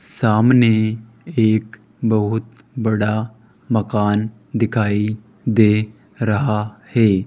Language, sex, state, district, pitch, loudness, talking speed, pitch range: Hindi, male, Rajasthan, Jaipur, 110 Hz, -18 LUFS, 75 wpm, 105-115 Hz